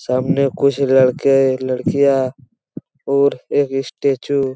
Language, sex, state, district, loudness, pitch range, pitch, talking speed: Hindi, male, Chhattisgarh, Raigarh, -16 LUFS, 130-140 Hz, 135 Hz, 105 wpm